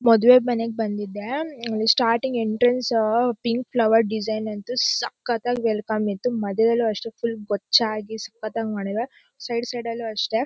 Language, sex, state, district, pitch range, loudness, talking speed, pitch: Kannada, female, Karnataka, Shimoga, 220-240 Hz, -23 LUFS, 145 wpm, 230 Hz